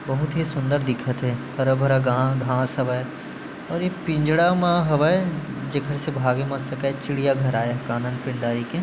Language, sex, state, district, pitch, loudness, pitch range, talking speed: Chhattisgarhi, male, Chhattisgarh, Bilaspur, 135 Hz, -23 LUFS, 125-155 Hz, 185 wpm